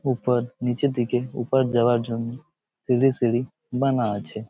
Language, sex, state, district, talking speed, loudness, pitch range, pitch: Bengali, male, West Bengal, Jhargram, 135 wpm, -24 LUFS, 120-130 Hz, 125 Hz